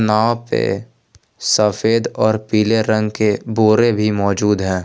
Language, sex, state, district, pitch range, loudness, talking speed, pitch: Hindi, male, Jharkhand, Ranchi, 105-110 Hz, -16 LUFS, 135 wpm, 110 Hz